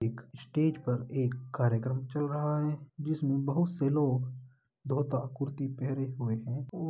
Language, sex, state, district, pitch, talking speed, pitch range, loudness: Hindi, male, Uttar Pradesh, Muzaffarnagar, 135 Hz, 165 wpm, 130-145 Hz, -32 LUFS